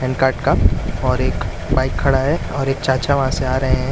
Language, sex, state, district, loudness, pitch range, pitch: Hindi, male, Maharashtra, Mumbai Suburban, -18 LUFS, 130-135 Hz, 130 Hz